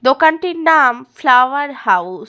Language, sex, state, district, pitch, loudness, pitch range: Bengali, female, West Bengal, Paschim Medinipur, 270 Hz, -14 LUFS, 250-315 Hz